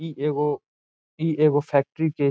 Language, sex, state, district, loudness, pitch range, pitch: Bhojpuri, male, Bihar, Saran, -23 LUFS, 140-155 Hz, 145 Hz